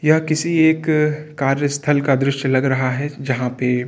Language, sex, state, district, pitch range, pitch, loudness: Hindi, male, Uttar Pradesh, Varanasi, 130-155 Hz, 140 Hz, -18 LUFS